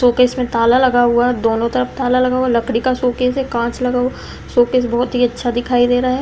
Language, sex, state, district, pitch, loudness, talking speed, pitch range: Hindi, female, Uttar Pradesh, Deoria, 250 Hz, -16 LUFS, 260 wpm, 240-255 Hz